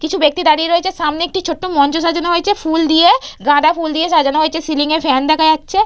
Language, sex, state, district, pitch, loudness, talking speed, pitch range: Bengali, female, West Bengal, Purulia, 320 Hz, -14 LUFS, 225 wpm, 310-345 Hz